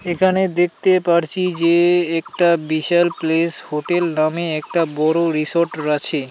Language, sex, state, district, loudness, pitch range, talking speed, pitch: Bengali, male, West Bengal, Alipurduar, -16 LUFS, 155-175 Hz, 125 wpm, 170 Hz